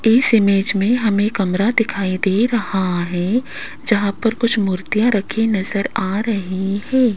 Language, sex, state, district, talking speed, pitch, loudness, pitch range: Hindi, female, Rajasthan, Jaipur, 150 wpm, 205 Hz, -18 LUFS, 195-230 Hz